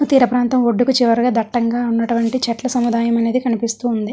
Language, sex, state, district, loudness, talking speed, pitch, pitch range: Telugu, female, Andhra Pradesh, Srikakulam, -17 LUFS, 145 wpm, 240 Hz, 230-250 Hz